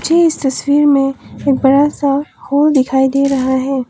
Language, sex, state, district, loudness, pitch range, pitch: Hindi, female, Arunachal Pradesh, Papum Pare, -13 LUFS, 270-290 Hz, 275 Hz